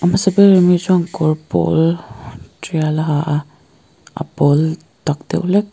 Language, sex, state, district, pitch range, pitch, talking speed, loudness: Mizo, female, Mizoram, Aizawl, 155-180 Hz, 160 Hz, 155 wpm, -16 LUFS